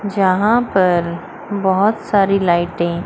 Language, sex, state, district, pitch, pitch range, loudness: Hindi, female, Chandigarh, Chandigarh, 190 Hz, 175-205 Hz, -16 LUFS